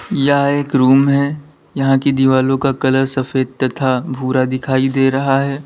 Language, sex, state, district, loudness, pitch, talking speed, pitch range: Hindi, male, Uttar Pradesh, Lalitpur, -15 LUFS, 135 Hz, 170 wpm, 130-140 Hz